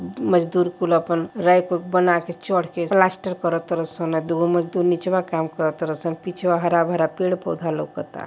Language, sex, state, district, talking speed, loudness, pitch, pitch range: Hindi, female, Uttar Pradesh, Varanasi, 180 wpm, -21 LUFS, 175 Hz, 165-180 Hz